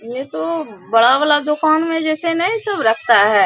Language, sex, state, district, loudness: Hindi, female, Bihar, Bhagalpur, -16 LUFS